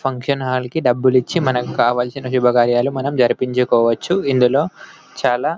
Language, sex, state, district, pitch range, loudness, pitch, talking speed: Telugu, male, Telangana, Karimnagar, 125-135 Hz, -17 LUFS, 130 Hz, 140 wpm